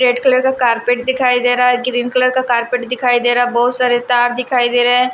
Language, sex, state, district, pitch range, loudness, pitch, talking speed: Hindi, female, Maharashtra, Washim, 245-255 Hz, -14 LUFS, 245 Hz, 270 wpm